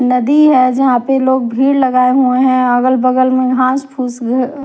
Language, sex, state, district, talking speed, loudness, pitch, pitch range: Hindi, female, Haryana, Rohtak, 195 wpm, -12 LUFS, 255 Hz, 250-265 Hz